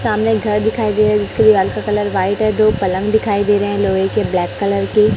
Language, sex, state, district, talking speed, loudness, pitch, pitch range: Hindi, male, Chhattisgarh, Raipur, 265 wpm, -15 LUFS, 210 Hz, 195-215 Hz